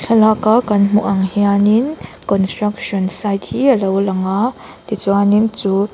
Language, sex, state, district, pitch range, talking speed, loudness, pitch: Mizo, female, Mizoram, Aizawl, 195-215 Hz, 140 wpm, -15 LUFS, 205 Hz